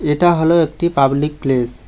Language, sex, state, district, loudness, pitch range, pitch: Bengali, male, West Bengal, Alipurduar, -15 LUFS, 135-170 Hz, 150 Hz